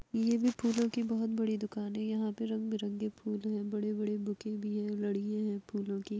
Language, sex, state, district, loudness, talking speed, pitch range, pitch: Hindi, female, Uttar Pradesh, Etah, -35 LUFS, 215 wpm, 210-220 Hz, 215 Hz